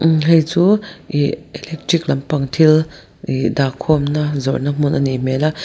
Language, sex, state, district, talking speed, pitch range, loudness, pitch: Mizo, female, Mizoram, Aizawl, 160 wpm, 135-160 Hz, -17 LUFS, 150 Hz